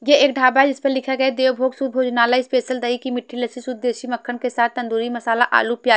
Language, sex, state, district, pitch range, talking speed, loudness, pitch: Hindi, female, Haryana, Jhajjar, 240-260 Hz, 260 wpm, -19 LUFS, 250 Hz